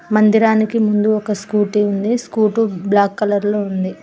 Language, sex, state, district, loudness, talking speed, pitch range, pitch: Telugu, female, Telangana, Mahabubabad, -16 LUFS, 150 wpm, 205-215 Hz, 210 Hz